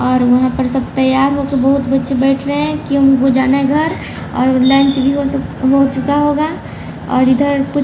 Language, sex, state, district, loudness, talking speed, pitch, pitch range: Hindi, female, Bihar, Patna, -14 LUFS, 175 wpm, 270 Hz, 260-280 Hz